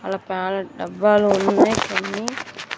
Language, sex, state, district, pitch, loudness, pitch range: Telugu, female, Andhra Pradesh, Sri Satya Sai, 195 Hz, -20 LUFS, 190-205 Hz